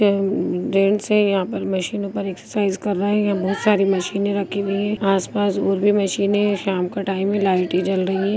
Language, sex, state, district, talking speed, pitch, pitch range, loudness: Hindi, female, Bihar, Muzaffarpur, 230 wpm, 195 Hz, 195-205 Hz, -20 LUFS